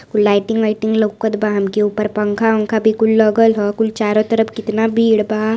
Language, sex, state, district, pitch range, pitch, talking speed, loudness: Hindi, female, Uttar Pradesh, Varanasi, 210-220 Hz, 220 Hz, 195 wpm, -15 LUFS